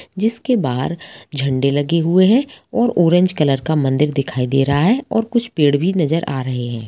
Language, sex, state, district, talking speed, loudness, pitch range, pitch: Hindi, female, Bihar, Gopalganj, 200 wpm, -17 LUFS, 135-190 Hz, 160 Hz